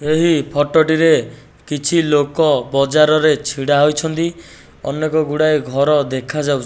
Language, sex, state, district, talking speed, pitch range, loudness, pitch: Odia, male, Odisha, Nuapada, 125 wpm, 145-155 Hz, -16 LUFS, 150 Hz